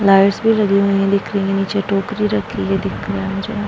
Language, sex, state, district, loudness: Hindi, female, Bihar, Vaishali, -17 LUFS